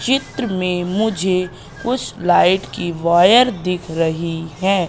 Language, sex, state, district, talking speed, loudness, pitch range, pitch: Hindi, female, Madhya Pradesh, Katni, 120 wpm, -17 LUFS, 170-220 Hz, 180 Hz